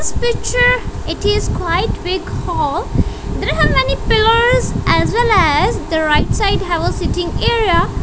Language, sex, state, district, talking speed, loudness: English, female, Punjab, Kapurthala, 165 wpm, -15 LUFS